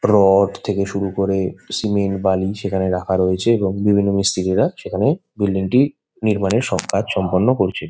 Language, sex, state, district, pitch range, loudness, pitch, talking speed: Bengali, male, West Bengal, Kolkata, 95-105 Hz, -18 LUFS, 100 Hz, 150 wpm